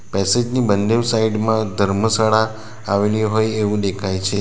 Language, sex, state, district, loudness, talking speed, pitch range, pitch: Gujarati, male, Gujarat, Valsad, -18 LUFS, 150 wpm, 100-110 Hz, 110 Hz